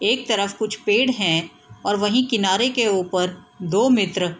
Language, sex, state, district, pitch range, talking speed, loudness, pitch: Hindi, female, Bihar, East Champaran, 185-225 Hz, 175 wpm, -20 LUFS, 205 Hz